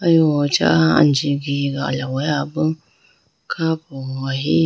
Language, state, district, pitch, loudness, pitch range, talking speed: Idu Mishmi, Arunachal Pradesh, Lower Dibang Valley, 140 Hz, -19 LUFS, 130-155 Hz, 105 wpm